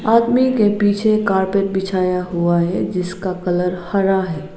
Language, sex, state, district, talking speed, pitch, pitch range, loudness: Hindi, female, Arunachal Pradesh, Lower Dibang Valley, 145 wpm, 190 Hz, 180-205 Hz, -18 LUFS